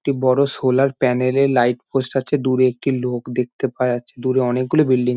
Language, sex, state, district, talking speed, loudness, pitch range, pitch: Bengali, male, West Bengal, Jhargram, 220 wpm, -19 LUFS, 125-135 Hz, 130 Hz